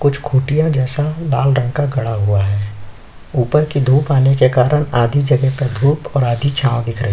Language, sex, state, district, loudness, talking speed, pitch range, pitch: Hindi, male, Chhattisgarh, Sukma, -15 LUFS, 195 wpm, 120-145 Hz, 135 Hz